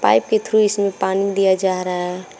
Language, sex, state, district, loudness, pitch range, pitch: Hindi, female, Uttar Pradesh, Shamli, -18 LUFS, 185-200 Hz, 190 Hz